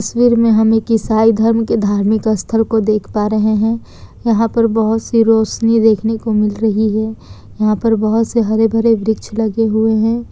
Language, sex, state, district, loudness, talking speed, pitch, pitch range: Hindi, female, Bihar, Kishanganj, -14 LUFS, 190 wpm, 220 Hz, 215-225 Hz